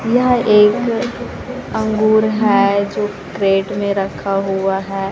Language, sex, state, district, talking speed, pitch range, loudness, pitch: Hindi, female, Chhattisgarh, Raipur, 115 wpm, 195-220 Hz, -16 LUFS, 205 Hz